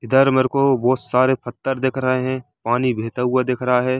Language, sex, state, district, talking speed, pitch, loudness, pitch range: Hindi, male, Jharkhand, Jamtara, 225 wpm, 130 Hz, -19 LUFS, 125-130 Hz